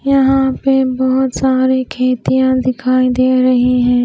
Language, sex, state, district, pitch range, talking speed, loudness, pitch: Hindi, female, Haryana, Rohtak, 255-265 Hz, 135 wpm, -13 LUFS, 260 Hz